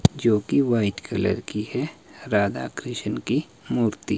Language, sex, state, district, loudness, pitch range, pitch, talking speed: Hindi, male, Himachal Pradesh, Shimla, -25 LUFS, 105-140 Hz, 110 Hz, 145 wpm